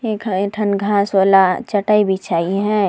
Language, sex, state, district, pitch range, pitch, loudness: Sadri, female, Chhattisgarh, Jashpur, 190-210 Hz, 200 Hz, -16 LUFS